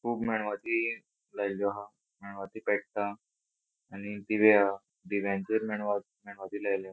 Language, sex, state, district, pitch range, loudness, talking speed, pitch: Konkani, male, Goa, North and South Goa, 100-110 Hz, -31 LUFS, 110 wpm, 100 Hz